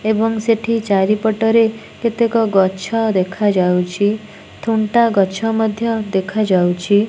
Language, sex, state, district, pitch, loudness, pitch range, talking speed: Odia, female, Odisha, Nuapada, 215 Hz, -16 LUFS, 195-225 Hz, 95 wpm